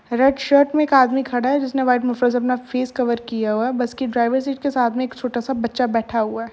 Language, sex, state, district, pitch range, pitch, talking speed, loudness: Hindi, female, Uttar Pradesh, Jalaun, 235-265 Hz, 250 Hz, 285 wpm, -19 LUFS